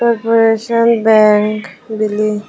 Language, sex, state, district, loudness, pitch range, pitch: Chakma, female, Tripura, Dhalai, -12 LUFS, 215-230 Hz, 220 Hz